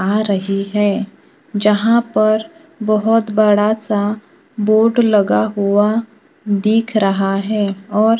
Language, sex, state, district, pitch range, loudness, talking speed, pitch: Hindi, male, Maharashtra, Gondia, 205-220 Hz, -16 LUFS, 115 wpm, 215 Hz